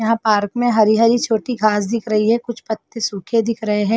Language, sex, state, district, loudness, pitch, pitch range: Hindi, female, Chhattisgarh, Rajnandgaon, -18 LUFS, 225 Hz, 215-230 Hz